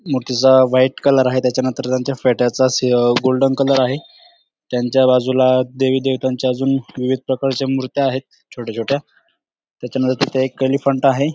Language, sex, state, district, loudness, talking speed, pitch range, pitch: Marathi, male, Maharashtra, Dhule, -17 LUFS, 165 wpm, 130-135 Hz, 130 Hz